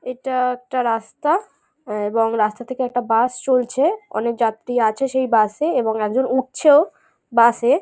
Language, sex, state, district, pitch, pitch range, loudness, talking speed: Bengali, female, West Bengal, North 24 Parganas, 250 Hz, 225-265 Hz, -19 LUFS, 145 wpm